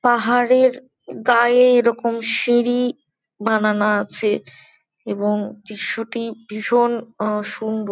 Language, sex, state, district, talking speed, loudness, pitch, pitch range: Bengali, female, West Bengal, Jalpaiguri, 75 wpm, -19 LUFS, 230 Hz, 210-240 Hz